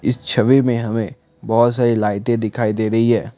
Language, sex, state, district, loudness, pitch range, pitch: Hindi, male, Assam, Kamrup Metropolitan, -17 LUFS, 110-120 Hz, 115 Hz